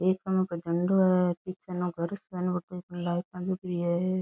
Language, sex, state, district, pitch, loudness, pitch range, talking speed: Rajasthani, female, Rajasthan, Nagaur, 180 Hz, -29 LUFS, 175-185 Hz, 85 wpm